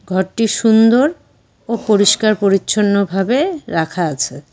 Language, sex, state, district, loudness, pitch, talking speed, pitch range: Bengali, female, West Bengal, Cooch Behar, -15 LUFS, 210 Hz, 105 wpm, 190-230 Hz